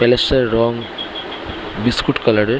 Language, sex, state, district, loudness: Bengali, male, West Bengal, Kolkata, -18 LUFS